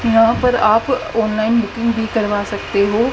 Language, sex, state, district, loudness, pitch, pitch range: Hindi, female, Haryana, Rohtak, -16 LUFS, 225 Hz, 215-235 Hz